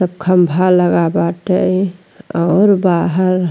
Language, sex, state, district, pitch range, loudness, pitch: Bhojpuri, female, Uttar Pradesh, Ghazipur, 170-185 Hz, -14 LUFS, 180 Hz